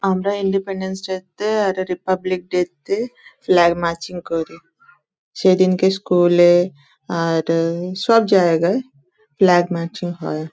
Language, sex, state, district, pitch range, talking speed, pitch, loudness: Bengali, female, West Bengal, Dakshin Dinajpur, 170-195 Hz, 120 wpm, 180 Hz, -18 LUFS